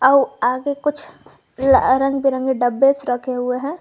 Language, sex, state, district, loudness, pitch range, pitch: Hindi, female, Jharkhand, Garhwa, -18 LUFS, 255-275 Hz, 265 Hz